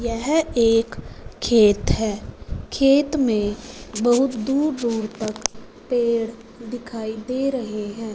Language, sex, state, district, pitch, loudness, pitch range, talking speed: Hindi, female, Punjab, Fazilka, 235 Hz, -21 LUFS, 220-255 Hz, 110 wpm